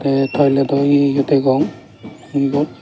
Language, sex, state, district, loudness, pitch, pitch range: Chakma, male, Tripura, Dhalai, -16 LUFS, 140 Hz, 135-140 Hz